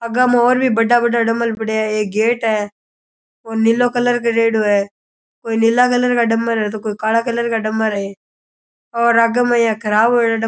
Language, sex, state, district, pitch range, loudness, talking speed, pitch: Rajasthani, male, Rajasthan, Churu, 220-235 Hz, -16 LUFS, 220 wpm, 230 Hz